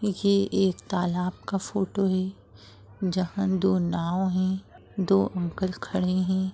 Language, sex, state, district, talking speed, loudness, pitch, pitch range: Hindi, female, Chhattisgarh, Rajnandgaon, 130 wpm, -26 LUFS, 185 Hz, 180-195 Hz